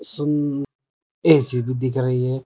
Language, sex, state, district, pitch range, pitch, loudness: Hindi, male, Uttar Pradesh, Saharanpur, 130-145 Hz, 135 Hz, -20 LUFS